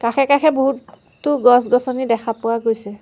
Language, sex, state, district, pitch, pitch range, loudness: Assamese, female, Assam, Sonitpur, 245 Hz, 230-270 Hz, -17 LUFS